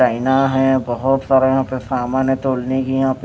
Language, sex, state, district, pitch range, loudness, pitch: Hindi, male, Chhattisgarh, Raipur, 130-135 Hz, -17 LUFS, 130 Hz